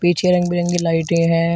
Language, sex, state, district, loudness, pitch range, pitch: Hindi, male, Uttar Pradesh, Shamli, -17 LUFS, 165-175 Hz, 175 Hz